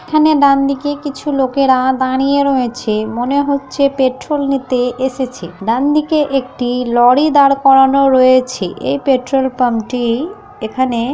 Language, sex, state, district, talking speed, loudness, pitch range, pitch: Bengali, female, West Bengal, Malda, 125 wpm, -14 LUFS, 250-280 Hz, 265 Hz